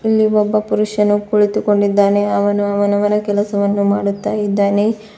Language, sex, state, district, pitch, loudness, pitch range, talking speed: Kannada, female, Karnataka, Bidar, 205 Hz, -15 LUFS, 205-210 Hz, 105 wpm